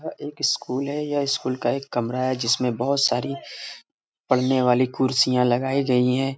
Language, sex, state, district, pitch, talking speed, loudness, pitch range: Hindi, male, Uttar Pradesh, Varanasi, 130 Hz, 170 wpm, -22 LUFS, 125-140 Hz